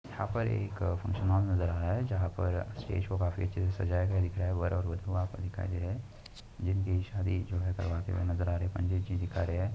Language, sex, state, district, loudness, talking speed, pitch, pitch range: Hindi, male, Uttar Pradesh, Muzaffarnagar, -33 LUFS, 265 wpm, 95 Hz, 90-95 Hz